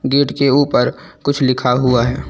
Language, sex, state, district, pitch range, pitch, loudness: Hindi, male, Uttar Pradesh, Lucknow, 125-140 Hz, 135 Hz, -15 LUFS